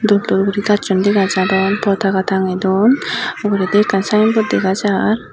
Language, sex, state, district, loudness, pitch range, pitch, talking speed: Chakma, female, Tripura, Unakoti, -15 LUFS, 190-210 Hz, 200 Hz, 170 wpm